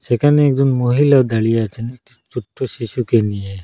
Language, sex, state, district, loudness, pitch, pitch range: Bengali, male, Assam, Hailakandi, -16 LUFS, 120 Hz, 115-135 Hz